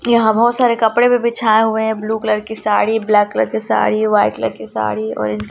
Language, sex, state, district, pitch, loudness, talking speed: Hindi, female, Chhattisgarh, Raipur, 215 Hz, -15 LUFS, 240 wpm